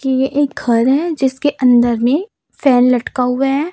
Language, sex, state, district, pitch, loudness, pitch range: Hindi, female, Chhattisgarh, Raipur, 265 Hz, -15 LUFS, 250-285 Hz